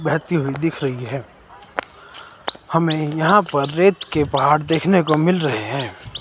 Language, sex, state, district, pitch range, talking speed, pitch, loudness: Hindi, male, Himachal Pradesh, Shimla, 140-165 Hz, 155 wpm, 150 Hz, -19 LUFS